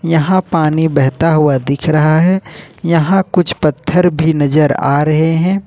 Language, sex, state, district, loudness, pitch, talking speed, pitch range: Hindi, male, Jharkhand, Ranchi, -12 LUFS, 160 Hz, 160 wpm, 150-175 Hz